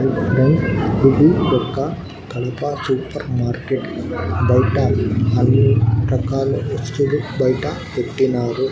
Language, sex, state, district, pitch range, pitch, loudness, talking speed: Telugu, male, Andhra Pradesh, Annamaya, 115-135 Hz, 130 Hz, -18 LUFS, 75 wpm